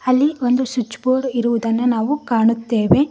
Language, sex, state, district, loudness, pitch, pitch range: Kannada, female, Karnataka, Koppal, -18 LUFS, 245 Hz, 230-260 Hz